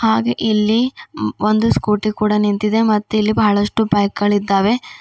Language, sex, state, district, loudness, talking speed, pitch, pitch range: Kannada, female, Karnataka, Bidar, -16 LUFS, 145 wpm, 215 Hz, 205-220 Hz